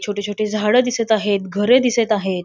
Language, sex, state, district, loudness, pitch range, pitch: Marathi, female, Maharashtra, Solapur, -18 LUFS, 205-230 Hz, 215 Hz